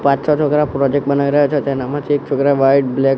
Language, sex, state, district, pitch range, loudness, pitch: Gujarati, male, Gujarat, Gandhinagar, 140-145 Hz, -15 LUFS, 140 Hz